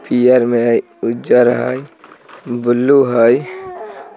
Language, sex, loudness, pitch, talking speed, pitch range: Bhojpuri, male, -13 LUFS, 120 Hz, 145 wpm, 120-130 Hz